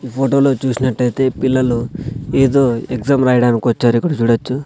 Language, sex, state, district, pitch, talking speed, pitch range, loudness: Telugu, male, Andhra Pradesh, Sri Satya Sai, 130 Hz, 140 wpm, 120-135 Hz, -15 LUFS